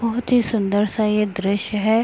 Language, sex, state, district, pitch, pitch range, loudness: Hindi, female, Uttar Pradesh, Etah, 215 Hz, 205-230 Hz, -20 LUFS